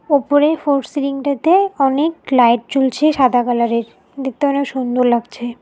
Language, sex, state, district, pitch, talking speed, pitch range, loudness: Bengali, female, West Bengal, Alipurduar, 270 Hz, 130 wpm, 245-290 Hz, -16 LUFS